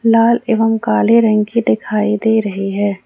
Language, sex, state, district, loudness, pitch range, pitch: Hindi, female, Jharkhand, Ranchi, -14 LUFS, 205-230 Hz, 220 Hz